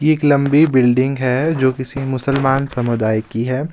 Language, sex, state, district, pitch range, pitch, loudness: Hindi, male, Himachal Pradesh, Shimla, 125-140 Hz, 135 Hz, -16 LUFS